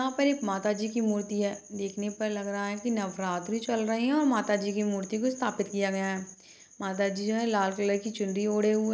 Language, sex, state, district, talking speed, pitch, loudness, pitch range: Hindi, female, Chhattisgarh, Bastar, 255 wpm, 210 Hz, -29 LUFS, 200-220 Hz